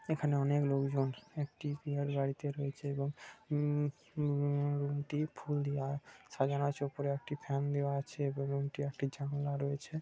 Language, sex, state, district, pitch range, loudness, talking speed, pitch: Bengali, male, West Bengal, Purulia, 140-145 Hz, -36 LUFS, 150 wpm, 140 Hz